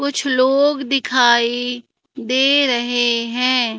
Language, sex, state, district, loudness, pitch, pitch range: Hindi, female, Madhya Pradesh, Katni, -16 LUFS, 255 Hz, 240-280 Hz